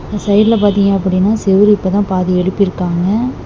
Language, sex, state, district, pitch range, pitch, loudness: Tamil, female, Tamil Nadu, Namakkal, 185-205 Hz, 200 Hz, -13 LUFS